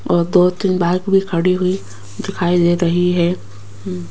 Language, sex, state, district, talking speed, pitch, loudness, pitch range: Hindi, female, Rajasthan, Jaipur, 175 wpm, 175 Hz, -16 LUFS, 110-185 Hz